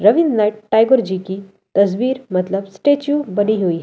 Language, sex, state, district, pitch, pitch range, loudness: Hindi, female, Delhi, New Delhi, 210 Hz, 195-260 Hz, -17 LUFS